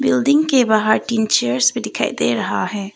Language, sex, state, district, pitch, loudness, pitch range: Hindi, female, Arunachal Pradesh, Papum Pare, 215 Hz, -17 LUFS, 195-250 Hz